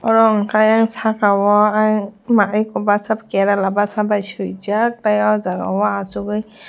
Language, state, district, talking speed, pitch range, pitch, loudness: Kokborok, Tripura, West Tripura, 150 wpm, 205-215 Hz, 210 Hz, -17 LUFS